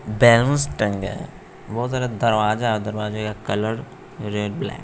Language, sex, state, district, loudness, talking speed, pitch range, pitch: Hindi, female, Bihar, West Champaran, -21 LUFS, 150 wpm, 105-120 Hz, 110 Hz